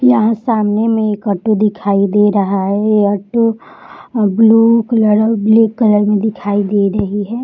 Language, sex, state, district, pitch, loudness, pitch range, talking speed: Hindi, female, Bihar, Saharsa, 215 Hz, -13 LUFS, 205-225 Hz, 170 wpm